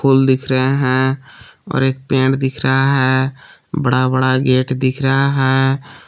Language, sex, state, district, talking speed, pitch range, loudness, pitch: Hindi, male, Jharkhand, Palamu, 160 wpm, 130-135 Hz, -15 LUFS, 130 Hz